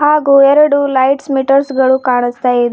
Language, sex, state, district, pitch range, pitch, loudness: Kannada, female, Karnataka, Bidar, 260-280 Hz, 270 Hz, -11 LUFS